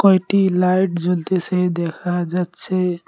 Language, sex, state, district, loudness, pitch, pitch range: Bengali, male, West Bengal, Cooch Behar, -19 LUFS, 180 Hz, 175-185 Hz